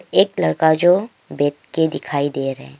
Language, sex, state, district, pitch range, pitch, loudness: Hindi, female, Arunachal Pradesh, Longding, 135-160 Hz, 145 Hz, -18 LUFS